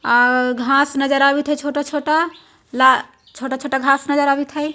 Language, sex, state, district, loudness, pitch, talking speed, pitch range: Hindi, female, Bihar, Jahanabad, -17 LUFS, 280 Hz, 150 wpm, 265-290 Hz